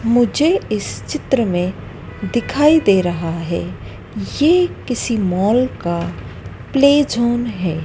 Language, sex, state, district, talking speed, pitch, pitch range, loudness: Hindi, female, Madhya Pradesh, Dhar, 115 wpm, 230 Hz, 175-265 Hz, -17 LUFS